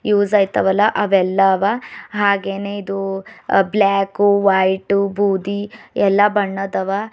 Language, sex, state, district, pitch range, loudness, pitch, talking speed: Kannada, female, Karnataka, Bidar, 195-205 Hz, -17 LUFS, 200 Hz, 110 wpm